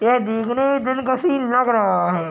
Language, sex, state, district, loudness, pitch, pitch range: Hindi, male, Bihar, Gopalganj, -19 LUFS, 245 Hz, 220-260 Hz